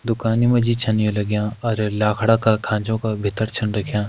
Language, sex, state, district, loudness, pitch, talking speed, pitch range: Hindi, male, Uttarakhand, Tehri Garhwal, -20 LUFS, 110 Hz, 220 wpm, 105-115 Hz